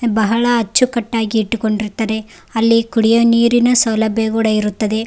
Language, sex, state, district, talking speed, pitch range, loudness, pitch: Kannada, female, Karnataka, Raichur, 105 wpm, 220-235 Hz, -15 LUFS, 225 Hz